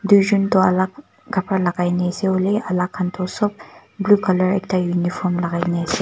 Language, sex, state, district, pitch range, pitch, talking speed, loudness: Nagamese, female, Nagaland, Kohima, 180-200 Hz, 185 Hz, 190 wpm, -19 LUFS